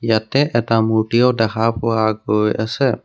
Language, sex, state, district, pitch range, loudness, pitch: Assamese, male, Assam, Kamrup Metropolitan, 110-115 Hz, -17 LUFS, 110 Hz